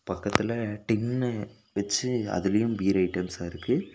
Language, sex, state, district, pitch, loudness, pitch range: Tamil, male, Tamil Nadu, Nilgiris, 105 Hz, -28 LUFS, 95-115 Hz